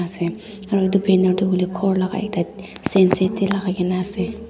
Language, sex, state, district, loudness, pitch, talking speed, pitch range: Nagamese, female, Nagaland, Dimapur, -20 LUFS, 190 Hz, 175 wpm, 185-200 Hz